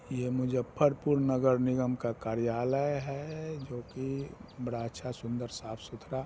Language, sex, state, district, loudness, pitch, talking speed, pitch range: Hindi, female, Bihar, Muzaffarpur, -32 LUFS, 125 Hz, 125 wpm, 120-140 Hz